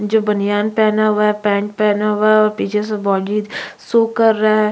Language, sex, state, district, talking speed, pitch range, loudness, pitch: Hindi, female, Chhattisgarh, Kabirdham, 215 wpm, 210-215 Hz, -16 LUFS, 210 Hz